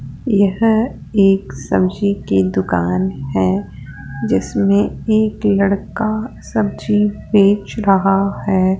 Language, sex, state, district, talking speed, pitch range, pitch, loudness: Hindi, female, Rajasthan, Jaipur, 90 wpm, 135-210 Hz, 195 Hz, -16 LUFS